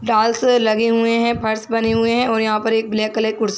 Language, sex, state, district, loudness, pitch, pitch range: Hindi, female, Chhattisgarh, Bilaspur, -17 LUFS, 225 Hz, 220-230 Hz